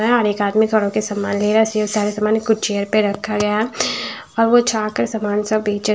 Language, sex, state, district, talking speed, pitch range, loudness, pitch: Hindi, female, Bihar, Patna, 300 wpm, 210-220 Hz, -18 LUFS, 215 Hz